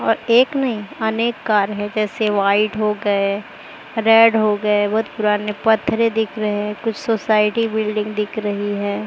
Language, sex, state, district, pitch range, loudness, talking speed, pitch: Hindi, male, Maharashtra, Mumbai Suburban, 210-225 Hz, -18 LUFS, 165 wpm, 215 Hz